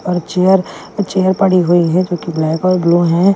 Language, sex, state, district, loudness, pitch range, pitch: Hindi, female, Delhi, New Delhi, -14 LUFS, 170-185 Hz, 180 Hz